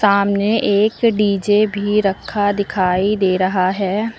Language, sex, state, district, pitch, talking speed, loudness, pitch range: Hindi, female, Uttar Pradesh, Lucknow, 200 Hz, 130 wpm, -16 LUFS, 195-210 Hz